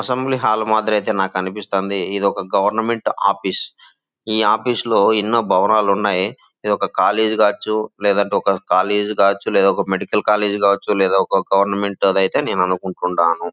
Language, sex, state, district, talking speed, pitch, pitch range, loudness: Telugu, male, Andhra Pradesh, Chittoor, 140 wpm, 100 Hz, 95-110 Hz, -17 LUFS